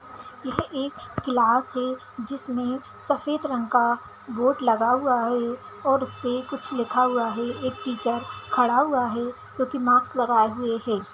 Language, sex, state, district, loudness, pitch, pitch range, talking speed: Hindi, female, Bihar, Kishanganj, -24 LUFS, 250 Hz, 240-265 Hz, 155 wpm